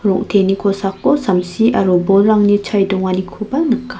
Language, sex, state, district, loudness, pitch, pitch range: Garo, female, Meghalaya, South Garo Hills, -15 LUFS, 200 Hz, 195-225 Hz